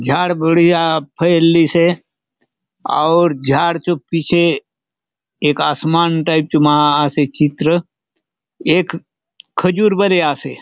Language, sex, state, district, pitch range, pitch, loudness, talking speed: Halbi, male, Chhattisgarh, Bastar, 150-170 Hz, 165 Hz, -15 LUFS, 105 wpm